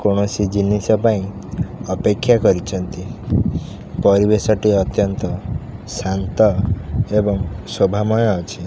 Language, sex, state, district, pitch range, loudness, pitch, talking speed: Odia, male, Odisha, Khordha, 95-105 Hz, -18 LUFS, 100 Hz, 85 wpm